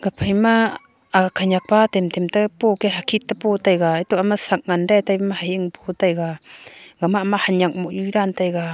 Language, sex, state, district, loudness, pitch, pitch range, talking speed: Wancho, female, Arunachal Pradesh, Longding, -19 LUFS, 190 Hz, 180-205 Hz, 200 wpm